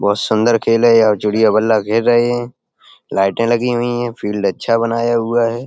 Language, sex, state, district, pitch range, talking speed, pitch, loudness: Hindi, male, Uttar Pradesh, Etah, 110-120 Hz, 200 wpm, 115 Hz, -15 LUFS